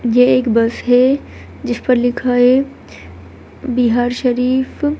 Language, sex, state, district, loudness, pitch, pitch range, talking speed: Hindi, female, Bihar, Begusarai, -15 LUFS, 250 Hz, 245-260 Hz, 120 wpm